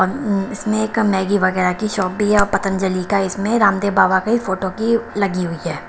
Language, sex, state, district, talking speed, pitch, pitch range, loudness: Hindi, female, Himachal Pradesh, Shimla, 215 wpm, 200 Hz, 190-210 Hz, -18 LUFS